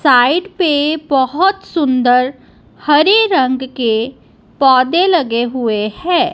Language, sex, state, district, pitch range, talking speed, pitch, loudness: Hindi, female, Punjab, Kapurthala, 250-350 Hz, 105 wpm, 275 Hz, -13 LUFS